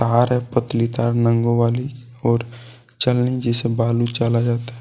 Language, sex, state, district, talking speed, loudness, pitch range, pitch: Hindi, male, Jharkhand, Deoghar, 100 wpm, -19 LUFS, 115-120 Hz, 120 Hz